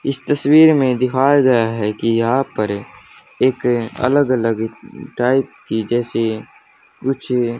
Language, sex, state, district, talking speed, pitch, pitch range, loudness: Hindi, male, Haryana, Jhajjar, 125 wpm, 125 Hz, 115-135 Hz, -17 LUFS